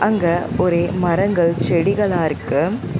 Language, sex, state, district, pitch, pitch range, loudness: Tamil, female, Tamil Nadu, Chennai, 175 Hz, 170-195 Hz, -18 LUFS